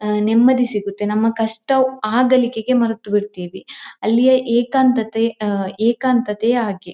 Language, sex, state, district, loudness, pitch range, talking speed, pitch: Kannada, female, Karnataka, Dakshina Kannada, -17 LUFS, 210-250 Hz, 115 wpm, 225 Hz